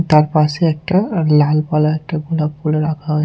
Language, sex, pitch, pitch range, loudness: Bengali, male, 155 Hz, 150-160 Hz, -16 LUFS